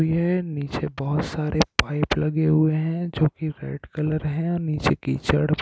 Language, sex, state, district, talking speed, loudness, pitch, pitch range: Hindi, male, Jharkhand, Sahebganj, 160 wpm, -24 LUFS, 155 Hz, 150-160 Hz